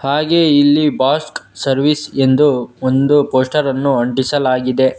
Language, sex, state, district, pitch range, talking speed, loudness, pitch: Kannada, male, Karnataka, Bangalore, 130-145 Hz, 110 wpm, -14 LUFS, 135 Hz